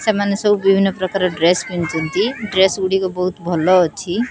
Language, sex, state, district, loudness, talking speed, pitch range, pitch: Odia, female, Odisha, Khordha, -17 LUFS, 155 wpm, 180-195 Hz, 190 Hz